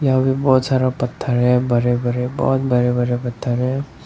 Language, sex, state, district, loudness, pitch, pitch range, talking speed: Hindi, male, Nagaland, Dimapur, -18 LUFS, 125 Hz, 120-130 Hz, 190 wpm